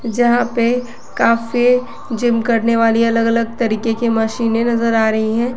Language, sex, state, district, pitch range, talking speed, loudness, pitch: Hindi, female, Jharkhand, Garhwa, 230-240 Hz, 160 wpm, -16 LUFS, 230 Hz